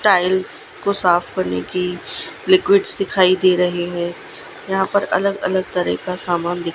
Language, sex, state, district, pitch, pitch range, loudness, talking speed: Hindi, female, Gujarat, Gandhinagar, 185 Hz, 175-200 Hz, -18 LUFS, 160 wpm